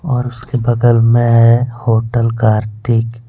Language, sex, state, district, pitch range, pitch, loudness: Hindi, male, Jharkhand, Deoghar, 115-120 Hz, 115 Hz, -13 LUFS